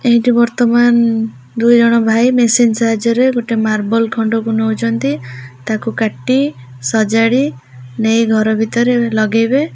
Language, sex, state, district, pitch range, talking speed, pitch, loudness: Odia, female, Odisha, Khordha, 220-235 Hz, 125 wpm, 225 Hz, -14 LUFS